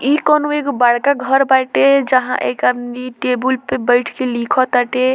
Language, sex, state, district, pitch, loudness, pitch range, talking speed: Bhojpuri, female, Bihar, Muzaffarpur, 255 Hz, -15 LUFS, 245-275 Hz, 175 wpm